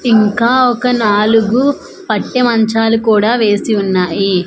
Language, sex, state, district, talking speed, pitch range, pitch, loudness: Telugu, female, Andhra Pradesh, Manyam, 105 wpm, 210-240 Hz, 225 Hz, -12 LUFS